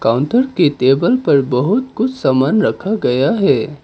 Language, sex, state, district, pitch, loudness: Hindi, male, Arunachal Pradesh, Papum Pare, 190 Hz, -15 LUFS